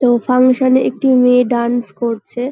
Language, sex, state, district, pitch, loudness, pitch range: Bengali, female, West Bengal, North 24 Parganas, 250 Hz, -14 LUFS, 240-255 Hz